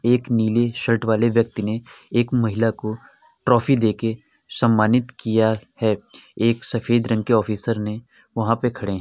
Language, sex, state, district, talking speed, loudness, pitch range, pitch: Hindi, male, Uttar Pradesh, Muzaffarnagar, 160 wpm, -21 LUFS, 110-120 Hz, 115 Hz